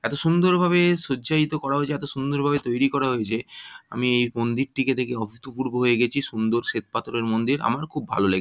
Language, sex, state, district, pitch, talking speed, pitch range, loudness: Bengali, female, West Bengal, Jhargram, 130 Hz, 165 wpm, 120-145 Hz, -23 LUFS